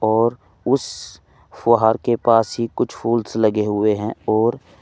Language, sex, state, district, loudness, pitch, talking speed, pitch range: Hindi, male, Uttar Pradesh, Saharanpur, -19 LUFS, 115 Hz, 150 wpm, 105-115 Hz